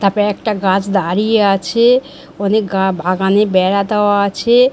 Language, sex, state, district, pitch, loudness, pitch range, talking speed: Bengali, female, West Bengal, Dakshin Dinajpur, 200 Hz, -14 LUFS, 190-215 Hz, 140 wpm